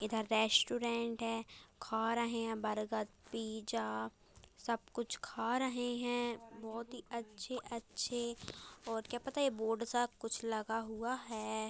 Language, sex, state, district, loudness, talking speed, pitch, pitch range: Hindi, female, Uttar Pradesh, Jyotiba Phule Nagar, -39 LUFS, 130 wpm, 230 Hz, 220-240 Hz